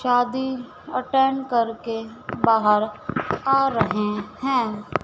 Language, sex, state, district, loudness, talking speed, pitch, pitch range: Hindi, female, Madhya Pradesh, Dhar, -22 LUFS, 85 wpm, 235 Hz, 215-260 Hz